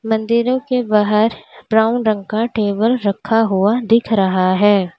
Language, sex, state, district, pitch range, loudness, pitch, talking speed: Hindi, female, Uttar Pradesh, Lalitpur, 205-230 Hz, -16 LUFS, 220 Hz, 145 wpm